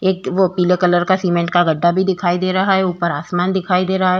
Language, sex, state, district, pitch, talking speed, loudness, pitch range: Hindi, female, Goa, North and South Goa, 180 Hz, 270 wpm, -16 LUFS, 175-190 Hz